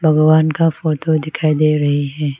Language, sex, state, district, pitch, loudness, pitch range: Hindi, female, Arunachal Pradesh, Lower Dibang Valley, 155 Hz, -15 LUFS, 150-155 Hz